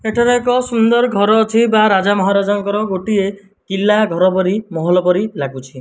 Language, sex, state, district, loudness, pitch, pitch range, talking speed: Odia, male, Odisha, Malkangiri, -15 LUFS, 205 Hz, 190-220 Hz, 155 wpm